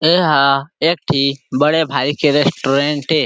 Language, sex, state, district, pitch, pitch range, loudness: Chhattisgarhi, male, Chhattisgarh, Sarguja, 145 Hz, 140-160 Hz, -15 LUFS